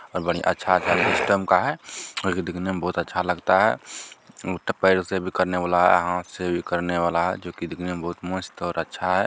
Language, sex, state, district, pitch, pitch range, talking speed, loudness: Hindi, male, Bihar, Sitamarhi, 90 Hz, 90-95 Hz, 235 wpm, -23 LUFS